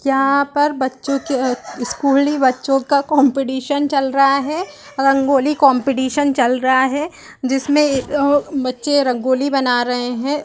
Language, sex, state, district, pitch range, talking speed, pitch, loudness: Hindi, female, Bihar, Lakhisarai, 260-285 Hz, 130 wpm, 275 Hz, -17 LUFS